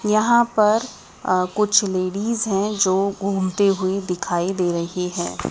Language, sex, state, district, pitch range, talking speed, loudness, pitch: Hindi, female, Madhya Pradesh, Dhar, 185-210 Hz, 140 wpm, -20 LUFS, 195 Hz